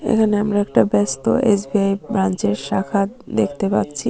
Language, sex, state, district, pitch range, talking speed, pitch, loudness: Bengali, female, Tripura, Unakoti, 175-210 Hz, 130 wpm, 195 Hz, -19 LUFS